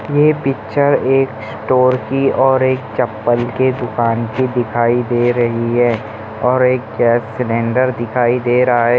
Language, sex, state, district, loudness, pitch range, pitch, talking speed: Hindi, male, Bihar, Jamui, -15 LUFS, 115-130 Hz, 120 Hz, 145 wpm